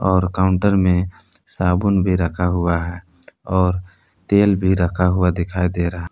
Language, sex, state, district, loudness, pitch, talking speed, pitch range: Hindi, male, Jharkhand, Palamu, -18 LUFS, 90 Hz, 155 wpm, 90-95 Hz